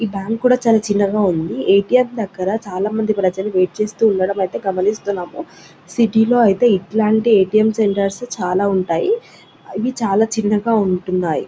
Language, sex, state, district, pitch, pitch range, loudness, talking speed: Telugu, female, Telangana, Nalgonda, 205 Hz, 190-220 Hz, -17 LUFS, 135 wpm